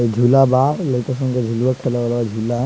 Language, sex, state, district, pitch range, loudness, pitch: Bhojpuri, male, Bihar, Muzaffarpur, 120-130 Hz, -17 LUFS, 125 Hz